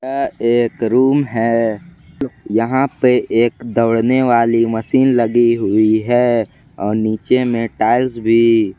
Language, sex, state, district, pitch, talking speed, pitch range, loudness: Hindi, male, Jharkhand, Ranchi, 115 Hz, 125 wpm, 115-130 Hz, -15 LUFS